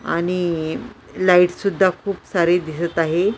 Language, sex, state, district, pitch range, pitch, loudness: Marathi, female, Maharashtra, Washim, 170-185 Hz, 180 Hz, -19 LUFS